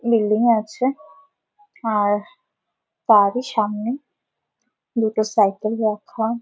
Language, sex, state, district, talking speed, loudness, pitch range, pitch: Bengali, female, West Bengal, Malda, 85 wpm, -20 LUFS, 215-250 Hz, 220 Hz